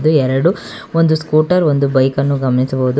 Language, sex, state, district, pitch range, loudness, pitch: Kannada, female, Karnataka, Bangalore, 135-155 Hz, -14 LUFS, 145 Hz